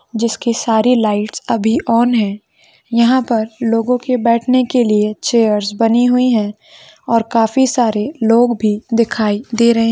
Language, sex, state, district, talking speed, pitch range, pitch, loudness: Hindi, female, Maharashtra, Nagpur, 150 wpm, 220-245 Hz, 230 Hz, -15 LUFS